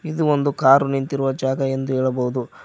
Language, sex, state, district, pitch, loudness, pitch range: Kannada, male, Karnataka, Koppal, 135 Hz, -20 LUFS, 130-140 Hz